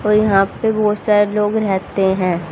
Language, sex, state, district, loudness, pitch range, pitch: Hindi, female, Haryana, Jhajjar, -16 LUFS, 190-210 Hz, 210 Hz